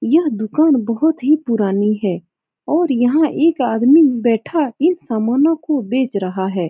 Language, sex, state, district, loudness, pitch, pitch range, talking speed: Hindi, female, Uttar Pradesh, Etah, -16 LUFS, 255 Hz, 220-310 Hz, 150 wpm